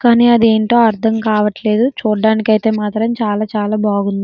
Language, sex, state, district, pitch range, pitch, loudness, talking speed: Telugu, female, Andhra Pradesh, Srikakulam, 210-230 Hz, 220 Hz, -14 LUFS, 125 wpm